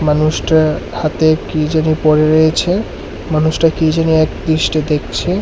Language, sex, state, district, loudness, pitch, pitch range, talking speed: Bengali, male, Tripura, West Tripura, -14 LUFS, 155 Hz, 155-160 Hz, 120 wpm